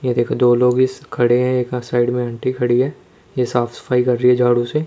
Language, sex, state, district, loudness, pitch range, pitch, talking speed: Hindi, male, Chandigarh, Chandigarh, -17 LUFS, 120-125 Hz, 125 Hz, 260 wpm